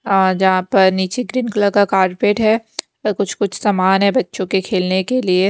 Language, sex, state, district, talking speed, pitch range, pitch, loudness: Hindi, female, Bihar, Kaimur, 205 wpm, 190-210 Hz, 195 Hz, -16 LUFS